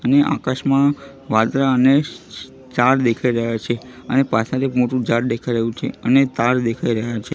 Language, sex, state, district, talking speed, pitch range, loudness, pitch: Gujarati, male, Gujarat, Gandhinagar, 170 wpm, 115-135 Hz, -18 LUFS, 125 Hz